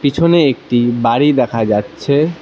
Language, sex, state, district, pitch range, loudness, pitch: Bengali, male, West Bengal, Cooch Behar, 120-150 Hz, -14 LUFS, 140 Hz